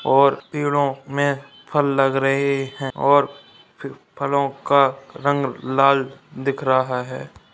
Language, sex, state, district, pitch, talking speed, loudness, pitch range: Hindi, male, Uttarakhand, Uttarkashi, 140 Hz, 125 wpm, -20 LUFS, 135-140 Hz